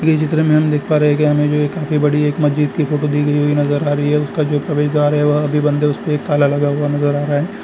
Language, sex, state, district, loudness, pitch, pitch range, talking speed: Hindi, male, Chhattisgarh, Bilaspur, -16 LUFS, 150 Hz, 145-150 Hz, 315 wpm